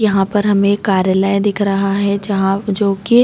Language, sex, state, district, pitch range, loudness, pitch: Hindi, female, Chhattisgarh, Raigarh, 195-205 Hz, -15 LUFS, 200 Hz